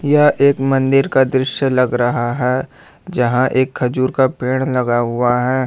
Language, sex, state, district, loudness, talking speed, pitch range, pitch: Hindi, male, Jharkhand, Ranchi, -16 LUFS, 170 wpm, 125-135 Hz, 130 Hz